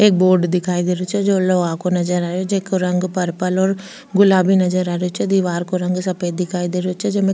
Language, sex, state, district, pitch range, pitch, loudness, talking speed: Rajasthani, female, Rajasthan, Nagaur, 180-190 Hz, 185 Hz, -18 LUFS, 245 wpm